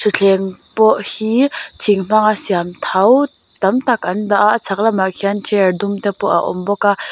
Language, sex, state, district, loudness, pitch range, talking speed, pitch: Mizo, female, Mizoram, Aizawl, -15 LUFS, 195-220 Hz, 195 wpm, 205 Hz